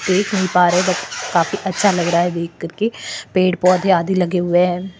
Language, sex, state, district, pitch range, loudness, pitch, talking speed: Hindi, female, Maharashtra, Chandrapur, 175-190 Hz, -17 LUFS, 185 Hz, 205 wpm